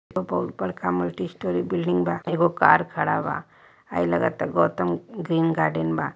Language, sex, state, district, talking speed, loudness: Hindi, male, Uttar Pradesh, Varanasi, 145 wpm, -24 LUFS